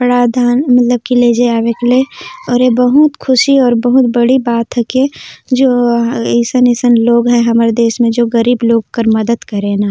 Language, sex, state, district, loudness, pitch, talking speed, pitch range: Sadri, female, Chhattisgarh, Jashpur, -11 LUFS, 240 Hz, 180 wpm, 235-250 Hz